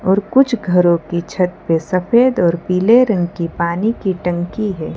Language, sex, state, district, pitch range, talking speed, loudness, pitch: Hindi, female, Gujarat, Valsad, 175-210 Hz, 180 wpm, -16 LUFS, 180 Hz